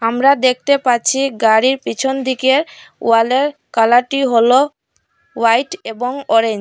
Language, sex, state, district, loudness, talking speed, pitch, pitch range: Bengali, female, Assam, Hailakandi, -15 LUFS, 120 wpm, 255 Hz, 230-275 Hz